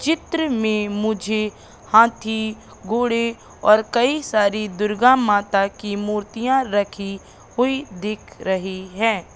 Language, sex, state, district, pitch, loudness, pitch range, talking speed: Hindi, female, Madhya Pradesh, Katni, 215 Hz, -20 LUFS, 205-235 Hz, 110 wpm